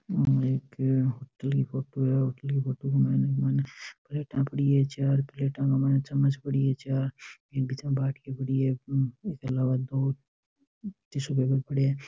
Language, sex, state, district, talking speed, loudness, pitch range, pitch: Marwari, male, Rajasthan, Nagaur, 175 wpm, -28 LUFS, 130-140 Hz, 135 Hz